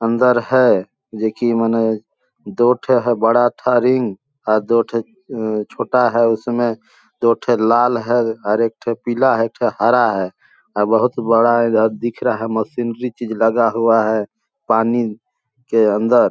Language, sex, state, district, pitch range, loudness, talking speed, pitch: Hindi, male, Chhattisgarh, Balrampur, 110-120 Hz, -17 LUFS, 155 wpm, 115 Hz